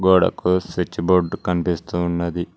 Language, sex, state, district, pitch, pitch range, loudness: Telugu, male, Telangana, Mahabubabad, 90 Hz, 85-90 Hz, -20 LUFS